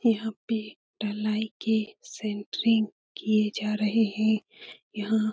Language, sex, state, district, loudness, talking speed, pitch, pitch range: Hindi, female, Bihar, Lakhisarai, -28 LUFS, 125 wpm, 215 Hz, 210-220 Hz